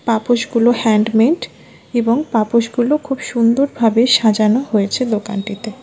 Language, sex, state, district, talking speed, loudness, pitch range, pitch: Bengali, female, West Bengal, Alipurduar, 125 wpm, -16 LUFS, 220-245 Hz, 230 Hz